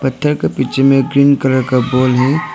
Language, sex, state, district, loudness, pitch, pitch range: Hindi, male, Arunachal Pradesh, Lower Dibang Valley, -13 LUFS, 130 Hz, 130-140 Hz